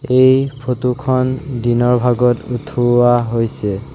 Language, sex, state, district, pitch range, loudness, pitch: Assamese, male, Assam, Sonitpur, 120-130 Hz, -15 LUFS, 125 Hz